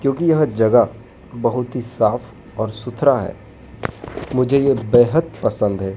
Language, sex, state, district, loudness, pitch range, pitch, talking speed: Hindi, male, Madhya Pradesh, Dhar, -18 LUFS, 110-135 Hz, 120 Hz, 140 wpm